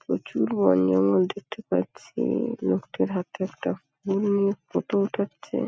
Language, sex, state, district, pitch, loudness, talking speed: Bengali, female, West Bengal, Paschim Medinipur, 190 Hz, -26 LUFS, 105 wpm